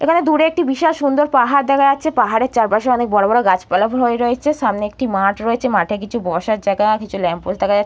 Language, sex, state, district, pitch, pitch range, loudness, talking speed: Bengali, female, West Bengal, Purulia, 240 Hz, 210-275 Hz, -16 LUFS, 215 wpm